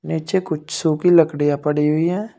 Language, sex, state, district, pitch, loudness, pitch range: Hindi, male, Uttar Pradesh, Shamli, 160 Hz, -18 LUFS, 150-175 Hz